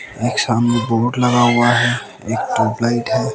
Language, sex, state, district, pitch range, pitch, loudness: Hindi, male, Bihar, West Champaran, 115-120 Hz, 120 Hz, -16 LUFS